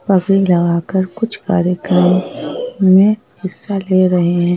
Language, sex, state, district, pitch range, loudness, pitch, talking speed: Hindi, female, Madhya Pradesh, Bhopal, 180-195 Hz, -14 LUFS, 185 Hz, 120 wpm